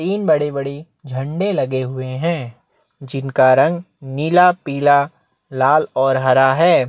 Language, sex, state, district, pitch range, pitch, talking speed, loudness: Hindi, male, Chhattisgarh, Bastar, 130-165 Hz, 140 Hz, 130 wpm, -17 LUFS